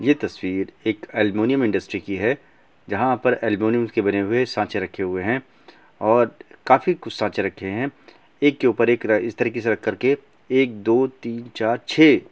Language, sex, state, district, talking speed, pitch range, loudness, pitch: Hindi, male, Bihar, Gopalganj, 190 wpm, 110-130 Hz, -21 LUFS, 115 Hz